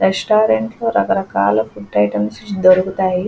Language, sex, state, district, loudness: Telugu, female, Andhra Pradesh, Krishna, -16 LUFS